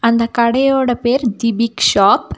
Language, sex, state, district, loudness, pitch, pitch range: Tamil, female, Tamil Nadu, Nilgiris, -14 LUFS, 235 Hz, 230-250 Hz